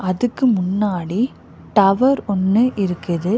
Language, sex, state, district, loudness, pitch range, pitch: Tamil, female, Tamil Nadu, Nilgiris, -18 LUFS, 185-240 Hz, 200 Hz